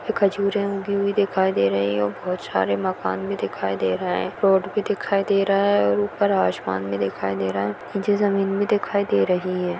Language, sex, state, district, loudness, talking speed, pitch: Hindi, female, Chhattisgarh, Jashpur, -22 LUFS, 225 wpm, 185 Hz